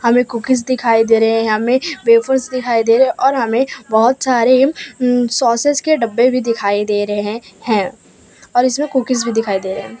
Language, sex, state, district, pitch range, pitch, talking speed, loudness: Hindi, female, Gujarat, Valsad, 225-260 Hz, 240 Hz, 180 wpm, -15 LUFS